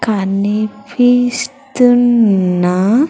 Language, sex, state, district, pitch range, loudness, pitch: Telugu, female, Andhra Pradesh, Sri Satya Sai, 200-245 Hz, -13 LUFS, 225 Hz